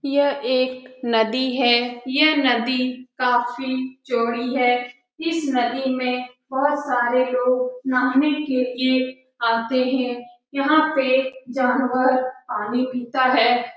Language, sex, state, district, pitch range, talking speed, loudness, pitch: Hindi, female, Bihar, Lakhisarai, 245-260 Hz, 115 wpm, -21 LUFS, 255 Hz